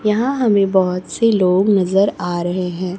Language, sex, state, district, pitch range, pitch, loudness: Hindi, female, Chhattisgarh, Raipur, 180-210 Hz, 190 Hz, -16 LUFS